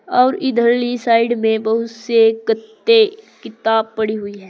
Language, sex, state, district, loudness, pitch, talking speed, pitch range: Hindi, female, Uttar Pradesh, Saharanpur, -16 LUFS, 230 Hz, 145 wpm, 220-245 Hz